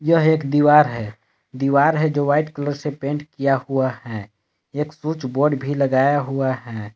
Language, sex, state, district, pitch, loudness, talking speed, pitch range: Hindi, male, Jharkhand, Palamu, 140 Hz, -20 LUFS, 180 wpm, 130-150 Hz